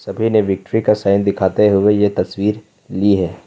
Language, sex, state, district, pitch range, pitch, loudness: Hindi, male, Jharkhand, Ranchi, 95-105 Hz, 100 Hz, -16 LUFS